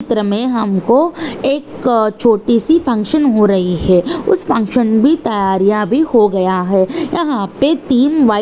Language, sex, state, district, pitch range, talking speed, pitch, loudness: Hindi, female, Chhattisgarh, Bastar, 210-290 Hz, 165 wpm, 235 Hz, -13 LUFS